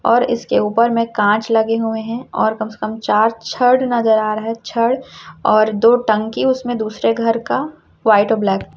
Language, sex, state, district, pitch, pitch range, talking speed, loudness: Hindi, female, Chhattisgarh, Raipur, 225 Hz, 215-235 Hz, 205 wpm, -16 LUFS